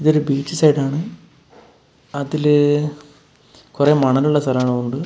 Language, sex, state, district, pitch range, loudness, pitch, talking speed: Malayalam, male, Kerala, Wayanad, 140-150 Hz, -17 LUFS, 145 Hz, 85 wpm